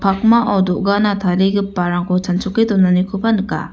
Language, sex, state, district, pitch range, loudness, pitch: Garo, female, Meghalaya, West Garo Hills, 180-205 Hz, -16 LUFS, 195 Hz